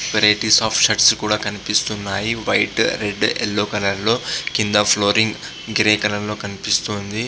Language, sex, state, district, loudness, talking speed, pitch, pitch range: Telugu, male, Andhra Pradesh, Visakhapatnam, -18 LUFS, 140 wpm, 105 Hz, 105-110 Hz